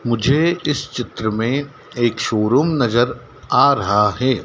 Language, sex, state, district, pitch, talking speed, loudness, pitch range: Hindi, male, Madhya Pradesh, Dhar, 120 Hz, 135 wpm, -18 LUFS, 110-140 Hz